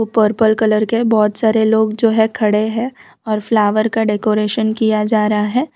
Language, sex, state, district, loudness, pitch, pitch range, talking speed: Hindi, female, Gujarat, Valsad, -15 LUFS, 220 Hz, 215-225 Hz, 190 wpm